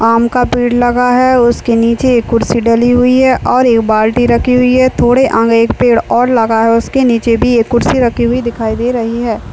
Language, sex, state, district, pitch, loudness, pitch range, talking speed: Hindi, female, Uttar Pradesh, Deoria, 240 Hz, -10 LUFS, 230-250 Hz, 220 wpm